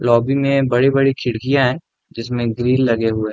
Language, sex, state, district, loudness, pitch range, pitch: Hindi, male, Bihar, Darbhanga, -17 LUFS, 115-135 Hz, 125 Hz